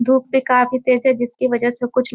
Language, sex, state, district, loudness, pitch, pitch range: Hindi, female, Bihar, Muzaffarpur, -17 LUFS, 255 Hz, 245-255 Hz